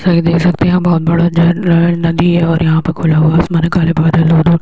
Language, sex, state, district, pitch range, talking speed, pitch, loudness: Hindi, female, Uttar Pradesh, Etah, 165-170 Hz, 285 wpm, 170 Hz, -11 LUFS